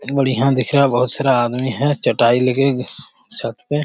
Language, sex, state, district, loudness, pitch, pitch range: Hindi, male, Bihar, Jamui, -17 LUFS, 130 Hz, 125-140 Hz